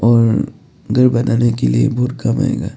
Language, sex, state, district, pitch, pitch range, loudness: Hindi, male, Arunachal Pradesh, Papum Pare, 115 Hz, 105-125 Hz, -15 LUFS